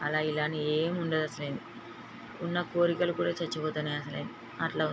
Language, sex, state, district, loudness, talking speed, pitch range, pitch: Telugu, female, Andhra Pradesh, Srikakulam, -32 LUFS, 135 wpm, 150-170 Hz, 155 Hz